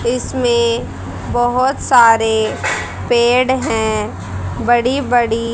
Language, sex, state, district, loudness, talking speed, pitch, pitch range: Hindi, female, Haryana, Rohtak, -15 LUFS, 75 wpm, 235 Hz, 220-250 Hz